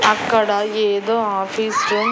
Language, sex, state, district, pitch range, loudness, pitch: Telugu, female, Andhra Pradesh, Annamaya, 205-220 Hz, -18 LUFS, 215 Hz